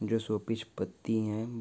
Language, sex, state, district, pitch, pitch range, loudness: Hindi, male, Chhattisgarh, Korba, 110 Hz, 110-115 Hz, -34 LUFS